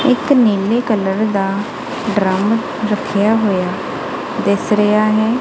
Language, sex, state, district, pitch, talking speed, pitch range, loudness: Punjabi, female, Punjab, Kapurthala, 210 Hz, 110 wpm, 200-225 Hz, -16 LUFS